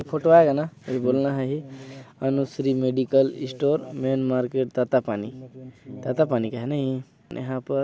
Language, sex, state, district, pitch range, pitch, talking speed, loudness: Hindi, male, Chhattisgarh, Balrampur, 130-140 Hz, 130 Hz, 115 wpm, -24 LUFS